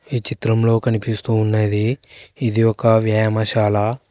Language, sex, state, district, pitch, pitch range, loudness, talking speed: Telugu, male, Telangana, Hyderabad, 115 Hz, 110-115 Hz, -18 LUFS, 100 wpm